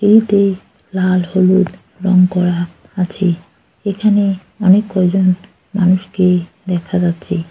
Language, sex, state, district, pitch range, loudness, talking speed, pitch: Bengali, female, West Bengal, Cooch Behar, 180-195 Hz, -15 LUFS, 90 wpm, 185 Hz